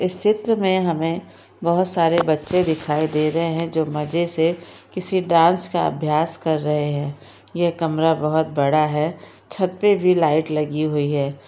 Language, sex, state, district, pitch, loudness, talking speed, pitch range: Hindi, male, Chhattisgarh, Kabirdham, 160 Hz, -20 LUFS, 170 wpm, 150-175 Hz